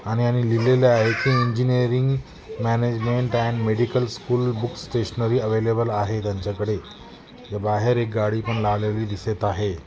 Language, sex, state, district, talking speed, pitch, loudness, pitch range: Marathi, male, Maharashtra, Nagpur, 135 wpm, 115 Hz, -22 LUFS, 105-125 Hz